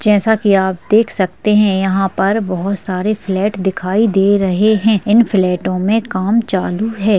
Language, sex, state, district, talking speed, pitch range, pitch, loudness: Hindi, female, Bihar, Madhepura, 175 wpm, 190-215 Hz, 200 Hz, -14 LUFS